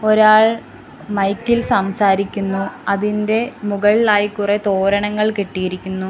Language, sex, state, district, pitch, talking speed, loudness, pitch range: Malayalam, female, Kerala, Kollam, 205 Hz, 90 wpm, -17 LUFS, 195-215 Hz